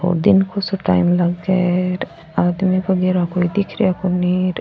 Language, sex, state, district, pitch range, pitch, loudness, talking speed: Rajasthani, female, Rajasthan, Churu, 180-190 Hz, 185 Hz, -18 LUFS, 170 wpm